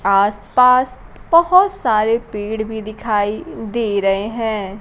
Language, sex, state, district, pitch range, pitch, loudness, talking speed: Hindi, female, Bihar, Kaimur, 205-235 Hz, 220 Hz, -17 LUFS, 125 wpm